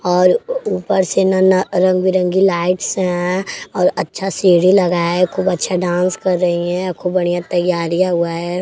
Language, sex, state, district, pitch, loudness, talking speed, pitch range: Bhojpuri, female, Uttar Pradesh, Deoria, 180 Hz, -16 LUFS, 165 wpm, 175-185 Hz